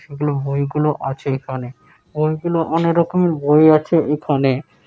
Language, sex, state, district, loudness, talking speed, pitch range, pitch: Bengali, male, West Bengal, Malda, -18 LUFS, 185 wpm, 140-160 Hz, 150 Hz